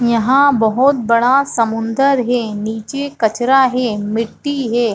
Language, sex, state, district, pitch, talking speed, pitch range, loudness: Hindi, female, Chhattisgarh, Bastar, 240 Hz, 120 wpm, 225-270 Hz, -15 LUFS